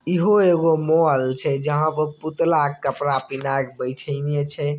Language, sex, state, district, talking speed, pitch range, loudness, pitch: Maithili, male, Bihar, Begusarai, 150 wpm, 135-160 Hz, -20 LUFS, 145 Hz